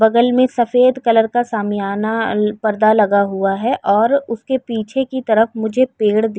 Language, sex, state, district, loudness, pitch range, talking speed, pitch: Hindi, female, Uttar Pradesh, Jyotiba Phule Nagar, -16 LUFS, 210-245 Hz, 185 wpm, 225 Hz